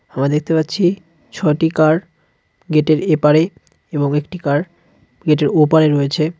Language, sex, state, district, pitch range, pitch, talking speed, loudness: Bengali, male, West Bengal, Cooch Behar, 150-165 Hz, 155 Hz, 120 wpm, -16 LUFS